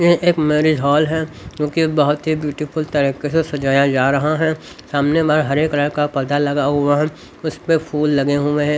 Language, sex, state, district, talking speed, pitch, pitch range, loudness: Hindi, male, Haryana, Rohtak, 205 wpm, 150 Hz, 145-155 Hz, -17 LUFS